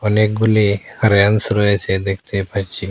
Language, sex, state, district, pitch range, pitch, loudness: Bengali, male, Assam, Hailakandi, 95-105 Hz, 100 Hz, -16 LUFS